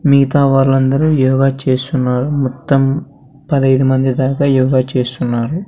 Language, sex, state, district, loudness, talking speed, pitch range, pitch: Telugu, male, Andhra Pradesh, Sri Satya Sai, -14 LUFS, 105 wpm, 130-140 Hz, 135 Hz